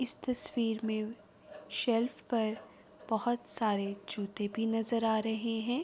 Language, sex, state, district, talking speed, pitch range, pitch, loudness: Urdu, female, Andhra Pradesh, Anantapur, 145 wpm, 215-235 Hz, 225 Hz, -34 LUFS